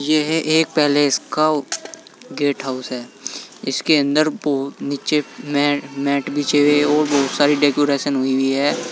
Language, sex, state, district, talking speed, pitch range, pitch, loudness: Hindi, male, Uttar Pradesh, Saharanpur, 155 wpm, 140-155 Hz, 145 Hz, -18 LUFS